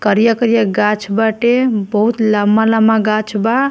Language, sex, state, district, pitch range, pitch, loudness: Bhojpuri, female, Bihar, Muzaffarpur, 210-230 Hz, 220 Hz, -14 LUFS